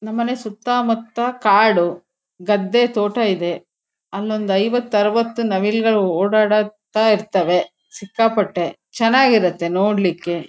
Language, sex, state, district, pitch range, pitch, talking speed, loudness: Kannada, female, Karnataka, Shimoga, 195-230 Hz, 210 Hz, 110 wpm, -18 LUFS